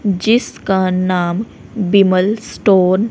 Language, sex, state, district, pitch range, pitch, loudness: Hindi, female, Haryana, Rohtak, 185-215 Hz, 195 Hz, -15 LUFS